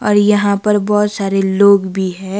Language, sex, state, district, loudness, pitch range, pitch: Hindi, female, Himachal Pradesh, Shimla, -13 LUFS, 195-210 Hz, 200 Hz